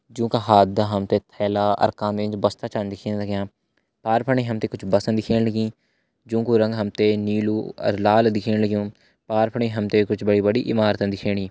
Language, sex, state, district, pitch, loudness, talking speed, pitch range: Hindi, male, Uttarakhand, Uttarkashi, 105 Hz, -22 LUFS, 215 wpm, 105-110 Hz